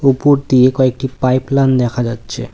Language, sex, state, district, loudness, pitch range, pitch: Bengali, male, West Bengal, Cooch Behar, -14 LUFS, 125-135 Hz, 130 Hz